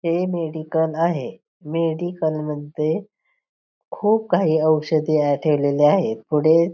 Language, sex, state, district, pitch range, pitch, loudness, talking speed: Marathi, female, Maharashtra, Pune, 155-175 Hz, 160 Hz, -20 LUFS, 100 wpm